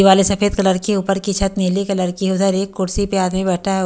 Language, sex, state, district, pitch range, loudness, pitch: Hindi, female, Haryana, Charkhi Dadri, 190-200 Hz, -17 LUFS, 195 Hz